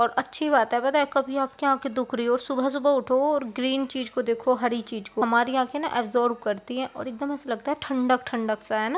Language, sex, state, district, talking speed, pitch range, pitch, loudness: Hindi, female, Uttar Pradesh, Jyotiba Phule Nagar, 260 wpm, 240-275 Hz, 255 Hz, -25 LUFS